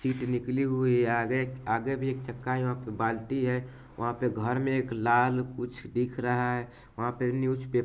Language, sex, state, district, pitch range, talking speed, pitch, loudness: Hindi, male, Bihar, Vaishali, 120-130 Hz, 230 wpm, 125 Hz, -30 LUFS